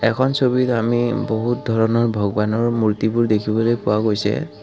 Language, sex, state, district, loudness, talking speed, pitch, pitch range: Assamese, male, Assam, Kamrup Metropolitan, -19 LUFS, 130 wpm, 115 Hz, 110-120 Hz